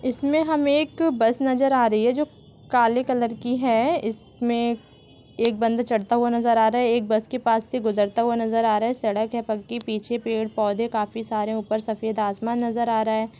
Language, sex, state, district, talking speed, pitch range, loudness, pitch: Hindi, female, Jharkhand, Sahebganj, 220 wpm, 220-240 Hz, -23 LUFS, 230 Hz